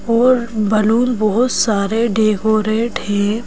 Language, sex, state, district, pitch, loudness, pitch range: Hindi, female, Madhya Pradesh, Bhopal, 220 Hz, -16 LUFS, 215-235 Hz